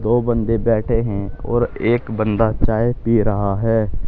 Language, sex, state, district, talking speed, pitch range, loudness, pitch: Hindi, male, Uttar Pradesh, Shamli, 160 wpm, 105-115 Hz, -19 LUFS, 110 Hz